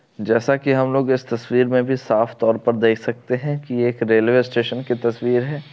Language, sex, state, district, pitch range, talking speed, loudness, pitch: Hindi, male, Bihar, Darbhanga, 115-130 Hz, 230 wpm, -19 LUFS, 125 Hz